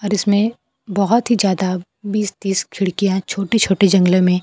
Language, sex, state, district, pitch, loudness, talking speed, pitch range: Hindi, female, Bihar, Kaimur, 200 Hz, -17 LUFS, 165 wpm, 190-205 Hz